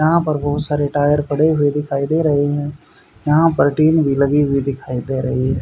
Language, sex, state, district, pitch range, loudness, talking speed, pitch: Hindi, male, Haryana, Rohtak, 140-150 Hz, -17 LUFS, 225 wpm, 145 Hz